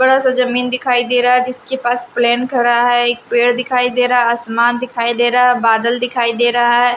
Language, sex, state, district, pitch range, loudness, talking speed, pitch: Hindi, female, Maharashtra, Washim, 240-250 Hz, -14 LUFS, 230 wpm, 245 Hz